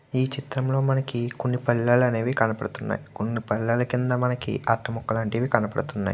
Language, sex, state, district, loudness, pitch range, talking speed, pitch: Telugu, male, Andhra Pradesh, Guntur, -25 LUFS, 115-125 Hz, 155 wpm, 120 Hz